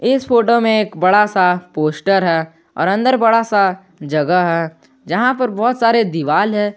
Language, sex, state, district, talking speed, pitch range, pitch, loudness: Hindi, male, Jharkhand, Garhwa, 175 wpm, 170-230 Hz, 195 Hz, -15 LUFS